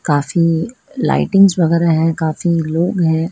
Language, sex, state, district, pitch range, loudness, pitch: Hindi, female, Madhya Pradesh, Dhar, 160-180 Hz, -15 LUFS, 165 Hz